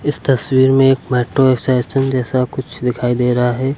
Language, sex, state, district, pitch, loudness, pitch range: Hindi, male, Uttar Pradesh, Lucknow, 130 Hz, -15 LUFS, 125-135 Hz